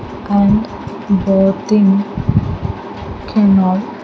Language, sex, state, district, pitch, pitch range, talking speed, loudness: English, female, Andhra Pradesh, Sri Satya Sai, 195 Hz, 195-205 Hz, 45 wpm, -14 LUFS